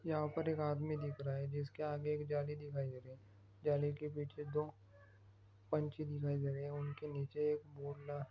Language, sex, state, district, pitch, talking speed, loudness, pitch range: Hindi, male, Maharashtra, Aurangabad, 145 Hz, 200 wpm, -42 LUFS, 140-150 Hz